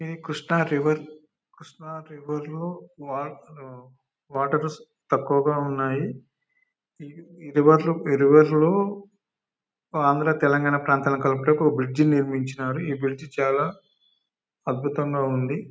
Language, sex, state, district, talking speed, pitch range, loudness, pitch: Telugu, male, Telangana, Nalgonda, 90 wpm, 140-160 Hz, -23 LUFS, 150 Hz